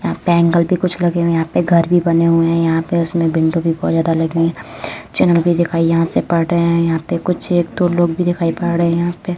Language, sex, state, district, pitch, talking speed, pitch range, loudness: Hindi, female, Uttar Pradesh, Deoria, 170 Hz, 295 wpm, 165-175 Hz, -15 LUFS